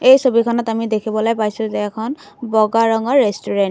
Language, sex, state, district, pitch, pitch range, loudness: Assamese, female, Assam, Kamrup Metropolitan, 225 Hz, 215-235 Hz, -17 LUFS